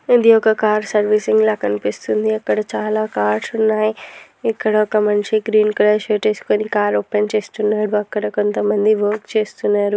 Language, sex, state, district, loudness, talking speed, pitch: Telugu, female, Andhra Pradesh, Anantapur, -17 LUFS, 145 wpm, 210 Hz